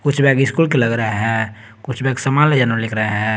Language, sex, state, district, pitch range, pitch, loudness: Hindi, male, Jharkhand, Garhwa, 110-135 Hz, 120 Hz, -17 LUFS